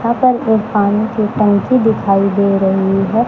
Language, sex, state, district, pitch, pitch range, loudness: Hindi, male, Haryana, Charkhi Dadri, 210 Hz, 200-225 Hz, -14 LUFS